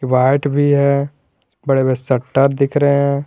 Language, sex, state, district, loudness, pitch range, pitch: Hindi, male, Jharkhand, Garhwa, -15 LUFS, 130-140 Hz, 140 Hz